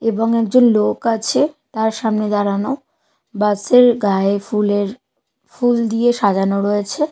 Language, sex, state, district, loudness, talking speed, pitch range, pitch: Bengali, female, Bihar, Katihar, -16 LUFS, 120 wpm, 205-240 Hz, 220 Hz